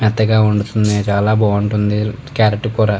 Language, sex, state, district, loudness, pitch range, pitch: Telugu, male, Telangana, Karimnagar, -15 LUFS, 105-110 Hz, 105 Hz